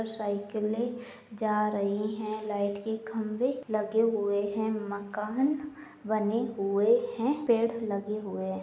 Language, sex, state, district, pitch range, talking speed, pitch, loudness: Hindi, female, Uttar Pradesh, Etah, 205-230 Hz, 130 wpm, 215 Hz, -30 LUFS